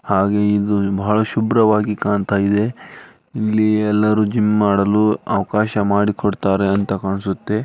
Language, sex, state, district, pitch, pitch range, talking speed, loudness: Kannada, male, Karnataka, Dharwad, 105 Hz, 100-105 Hz, 110 wpm, -17 LUFS